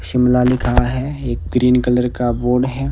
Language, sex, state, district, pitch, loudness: Hindi, male, Himachal Pradesh, Shimla, 125 Hz, -17 LUFS